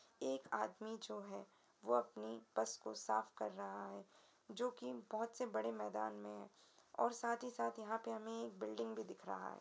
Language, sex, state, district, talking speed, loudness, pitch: Hindi, female, Uttar Pradesh, Ghazipur, 205 wpm, -45 LUFS, 115 Hz